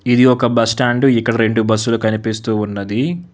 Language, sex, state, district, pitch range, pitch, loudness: Telugu, male, Telangana, Hyderabad, 110-125 Hz, 115 Hz, -15 LUFS